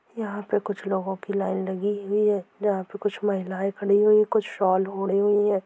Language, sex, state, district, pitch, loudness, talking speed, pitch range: Hindi, female, Jharkhand, Sahebganj, 200 Hz, -24 LUFS, 220 wpm, 195-205 Hz